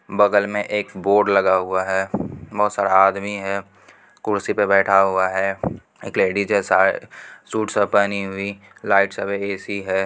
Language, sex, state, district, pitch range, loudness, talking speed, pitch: Hindi, female, Bihar, Supaul, 95-100 Hz, -20 LUFS, 165 wpm, 100 Hz